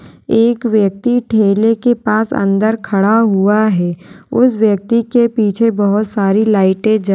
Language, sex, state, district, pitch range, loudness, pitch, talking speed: Kumaoni, female, Uttarakhand, Tehri Garhwal, 200-230 Hz, -13 LUFS, 215 Hz, 150 wpm